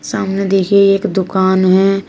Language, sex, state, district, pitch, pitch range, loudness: Hindi, female, Uttar Pradesh, Shamli, 195 Hz, 190-195 Hz, -13 LUFS